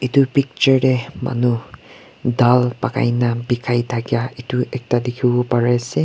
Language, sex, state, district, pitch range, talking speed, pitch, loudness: Nagamese, male, Nagaland, Kohima, 120-130 Hz, 140 wpm, 125 Hz, -18 LUFS